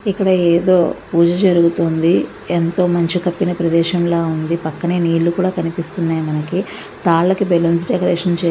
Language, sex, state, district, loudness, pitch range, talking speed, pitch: Telugu, female, Andhra Pradesh, Visakhapatnam, -16 LUFS, 170-180 Hz, 135 wpm, 170 Hz